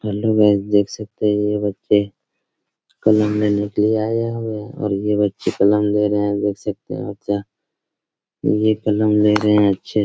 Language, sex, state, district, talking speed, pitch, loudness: Hindi, male, Bihar, Araria, 175 wpm, 105 Hz, -18 LUFS